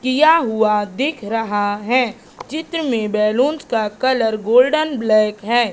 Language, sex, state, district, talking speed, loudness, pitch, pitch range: Hindi, female, Madhya Pradesh, Katni, 135 wpm, -17 LUFS, 235 Hz, 215-260 Hz